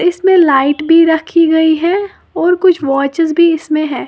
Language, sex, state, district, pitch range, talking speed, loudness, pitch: Hindi, female, Uttar Pradesh, Lalitpur, 310-350 Hz, 175 wpm, -11 LUFS, 330 Hz